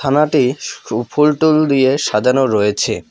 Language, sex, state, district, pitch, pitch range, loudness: Bengali, male, West Bengal, Alipurduar, 135 Hz, 115-150 Hz, -15 LUFS